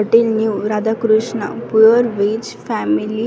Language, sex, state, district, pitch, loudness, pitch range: Marathi, female, Maharashtra, Washim, 220 Hz, -16 LUFS, 210-225 Hz